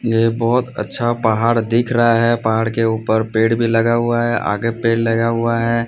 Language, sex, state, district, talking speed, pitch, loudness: Hindi, male, Odisha, Sambalpur, 205 wpm, 115 Hz, -17 LUFS